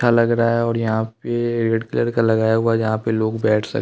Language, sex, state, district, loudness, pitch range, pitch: Hindi, male, Bihar, West Champaran, -19 LUFS, 110-115 Hz, 115 Hz